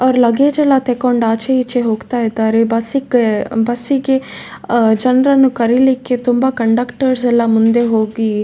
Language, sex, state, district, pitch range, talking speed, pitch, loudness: Kannada, female, Karnataka, Dakshina Kannada, 225-260 Hz, 120 wpm, 245 Hz, -14 LUFS